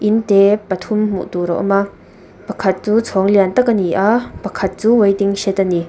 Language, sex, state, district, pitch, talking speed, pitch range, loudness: Mizo, female, Mizoram, Aizawl, 200 Hz, 225 wpm, 190-215 Hz, -15 LUFS